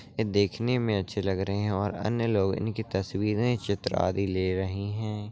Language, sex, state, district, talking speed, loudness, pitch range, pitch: Hindi, male, Rajasthan, Churu, 190 wpm, -28 LUFS, 95-110 Hz, 100 Hz